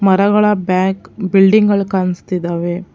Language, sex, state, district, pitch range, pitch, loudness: Kannada, female, Karnataka, Bangalore, 185-200 Hz, 190 Hz, -14 LUFS